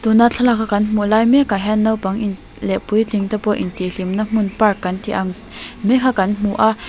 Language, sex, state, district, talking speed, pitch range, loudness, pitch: Mizo, female, Mizoram, Aizawl, 245 wpm, 195-220 Hz, -17 LUFS, 210 Hz